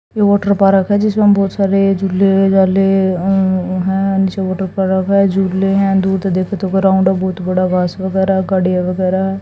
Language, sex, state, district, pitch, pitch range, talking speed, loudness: Hindi, female, Haryana, Jhajjar, 190 Hz, 190-195 Hz, 185 wpm, -14 LUFS